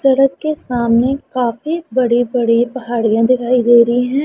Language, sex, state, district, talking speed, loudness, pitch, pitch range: Hindi, female, Punjab, Pathankot, 155 wpm, -15 LUFS, 250 Hz, 240-270 Hz